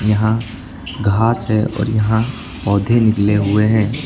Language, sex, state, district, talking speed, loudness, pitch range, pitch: Hindi, male, Uttar Pradesh, Lucknow, 135 wpm, -16 LUFS, 105-110 Hz, 110 Hz